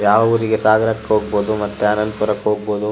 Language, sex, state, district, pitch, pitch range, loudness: Kannada, male, Karnataka, Shimoga, 105 Hz, 105-110 Hz, -17 LUFS